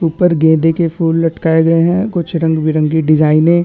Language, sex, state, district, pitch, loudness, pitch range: Hindi, male, Chhattisgarh, Bastar, 165 Hz, -13 LUFS, 160-170 Hz